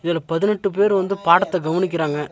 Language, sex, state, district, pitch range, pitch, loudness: Tamil, male, Tamil Nadu, Nilgiris, 165-200 Hz, 175 Hz, -19 LUFS